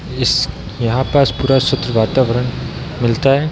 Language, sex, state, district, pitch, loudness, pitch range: Hindi, male, Bihar, Darbhanga, 130 Hz, -16 LUFS, 115-135 Hz